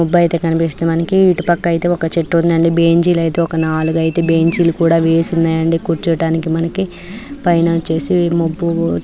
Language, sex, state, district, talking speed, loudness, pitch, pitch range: Telugu, female, Andhra Pradesh, Anantapur, 160 wpm, -14 LUFS, 165 Hz, 165-170 Hz